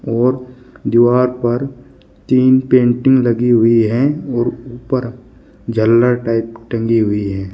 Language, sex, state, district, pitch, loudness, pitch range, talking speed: Hindi, male, Uttar Pradesh, Shamli, 120 Hz, -14 LUFS, 115-125 Hz, 120 wpm